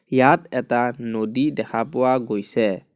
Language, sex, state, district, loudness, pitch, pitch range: Assamese, male, Assam, Kamrup Metropolitan, -21 LUFS, 115 Hz, 110-125 Hz